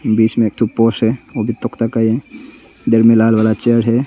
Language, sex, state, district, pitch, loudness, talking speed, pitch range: Hindi, male, Arunachal Pradesh, Longding, 115 Hz, -14 LUFS, 265 wpm, 110-115 Hz